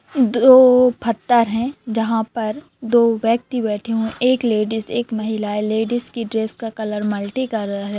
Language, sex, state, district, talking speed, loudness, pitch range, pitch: Hindi, female, Bihar, Saran, 165 wpm, -18 LUFS, 220-240 Hz, 225 Hz